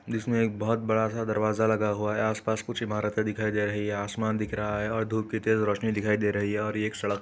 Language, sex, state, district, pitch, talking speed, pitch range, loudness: Hindi, male, Uttar Pradesh, Etah, 110 Hz, 290 wpm, 105-110 Hz, -28 LUFS